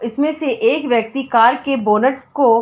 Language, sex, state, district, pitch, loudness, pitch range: Hindi, female, Chhattisgarh, Bilaspur, 265 Hz, -16 LUFS, 230-280 Hz